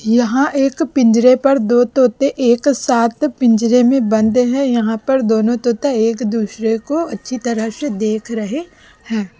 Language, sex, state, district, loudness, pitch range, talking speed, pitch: Hindi, female, Chhattisgarh, Raipur, -15 LUFS, 225-270 Hz, 160 wpm, 245 Hz